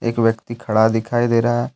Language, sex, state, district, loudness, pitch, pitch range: Hindi, male, Jharkhand, Deoghar, -18 LUFS, 115 Hz, 115-120 Hz